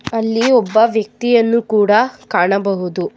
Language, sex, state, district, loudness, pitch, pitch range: Kannada, female, Karnataka, Bangalore, -15 LUFS, 220 Hz, 200-230 Hz